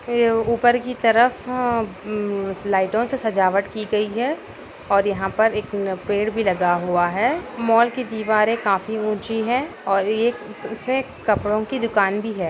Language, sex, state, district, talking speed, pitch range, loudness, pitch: Hindi, female, Uttar Pradesh, Gorakhpur, 175 wpm, 200-235 Hz, -21 LUFS, 220 Hz